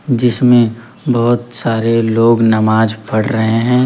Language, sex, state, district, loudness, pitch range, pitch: Hindi, male, Uttar Pradesh, Lalitpur, -13 LUFS, 110-120 Hz, 115 Hz